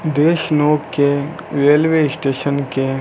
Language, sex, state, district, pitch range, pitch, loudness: Hindi, male, Rajasthan, Bikaner, 140-155 Hz, 145 Hz, -16 LUFS